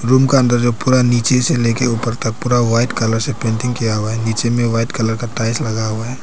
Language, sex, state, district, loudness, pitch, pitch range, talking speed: Hindi, male, Arunachal Pradesh, Papum Pare, -16 LUFS, 120 Hz, 115-125 Hz, 260 wpm